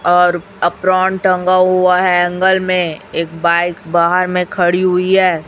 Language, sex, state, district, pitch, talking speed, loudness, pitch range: Hindi, female, Chhattisgarh, Raipur, 180 Hz, 155 wpm, -14 LUFS, 175-185 Hz